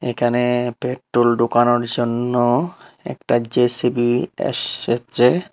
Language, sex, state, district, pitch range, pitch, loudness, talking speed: Bengali, male, Tripura, Unakoti, 120-125 Hz, 120 Hz, -18 LUFS, 75 wpm